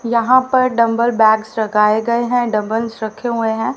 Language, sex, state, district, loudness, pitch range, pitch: Hindi, female, Haryana, Rohtak, -16 LUFS, 220-240 Hz, 230 Hz